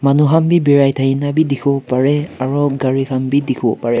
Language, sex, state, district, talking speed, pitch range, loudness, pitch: Nagamese, male, Nagaland, Kohima, 195 wpm, 130-145 Hz, -15 LUFS, 140 Hz